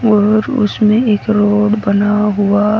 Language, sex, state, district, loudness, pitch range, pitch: Hindi, female, Haryana, Rohtak, -13 LUFS, 205-215 Hz, 210 Hz